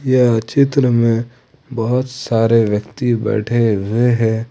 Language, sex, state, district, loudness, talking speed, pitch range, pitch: Hindi, male, Jharkhand, Ranchi, -16 LUFS, 120 wpm, 115-125 Hz, 120 Hz